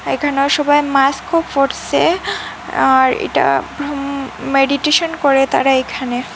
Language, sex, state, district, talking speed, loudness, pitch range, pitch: Bengali, female, Assam, Hailakandi, 105 wpm, -15 LUFS, 270-295 Hz, 280 Hz